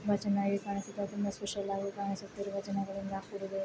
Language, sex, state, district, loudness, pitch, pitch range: Kannada, female, Karnataka, Shimoga, -36 LUFS, 200 Hz, 195-200 Hz